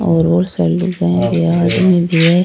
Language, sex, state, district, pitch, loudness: Rajasthani, female, Rajasthan, Churu, 170 Hz, -14 LUFS